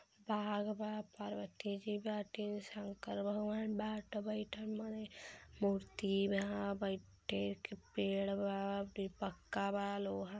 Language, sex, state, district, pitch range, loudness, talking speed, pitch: Hindi, female, Uttar Pradesh, Gorakhpur, 195-210 Hz, -41 LUFS, 105 wpm, 200 Hz